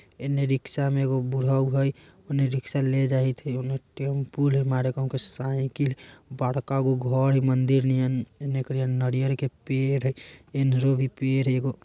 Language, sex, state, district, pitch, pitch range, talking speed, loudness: Bajjika, male, Bihar, Vaishali, 135 Hz, 130-135 Hz, 175 wpm, -26 LUFS